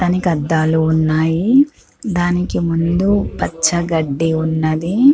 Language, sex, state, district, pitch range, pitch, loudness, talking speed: Telugu, female, Andhra Pradesh, Krishna, 160-180 Hz, 165 Hz, -16 LUFS, 95 wpm